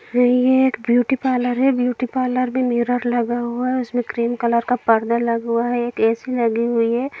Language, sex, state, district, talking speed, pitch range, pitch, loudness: Hindi, female, Bihar, Jamui, 215 wpm, 235-250 Hz, 245 Hz, -19 LUFS